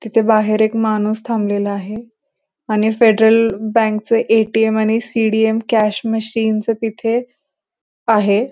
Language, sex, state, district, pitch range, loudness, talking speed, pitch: Marathi, female, Maharashtra, Pune, 215-230 Hz, -16 LUFS, 125 wpm, 220 Hz